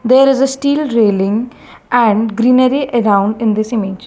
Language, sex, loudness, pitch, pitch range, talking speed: English, female, -13 LUFS, 235 Hz, 215-260 Hz, 160 wpm